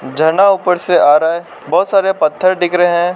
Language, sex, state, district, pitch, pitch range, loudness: Hindi, male, Arunachal Pradesh, Lower Dibang Valley, 180 Hz, 170-190 Hz, -12 LUFS